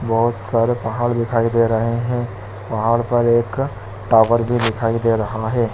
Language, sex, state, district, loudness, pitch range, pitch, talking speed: Hindi, male, Chhattisgarh, Bilaspur, -18 LUFS, 110-120 Hz, 115 Hz, 155 wpm